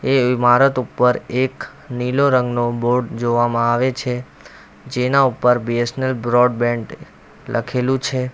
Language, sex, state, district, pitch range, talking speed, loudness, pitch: Gujarati, male, Gujarat, Valsad, 120-130 Hz, 135 wpm, -18 LUFS, 125 Hz